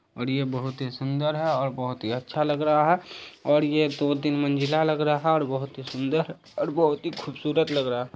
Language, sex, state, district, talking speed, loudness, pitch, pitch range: Hindi, male, Bihar, Saharsa, 235 wpm, -25 LUFS, 145 Hz, 135-155 Hz